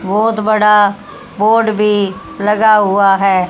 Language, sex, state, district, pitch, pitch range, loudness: Hindi, female, Haryana, Rohtak, 205 Hz, 195-215 Hz, -12 LUFS